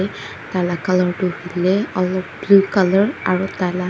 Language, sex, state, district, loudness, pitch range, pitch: Nagamese, female, Nagaland, Dimapur, -18 LUFS, 180-195 Hz, 185 Hz